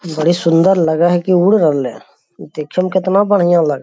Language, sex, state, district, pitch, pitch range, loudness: Magahi, male, Bihar, Lakhisarai, 175 Hz, 160-185 Hz, -13 LUFS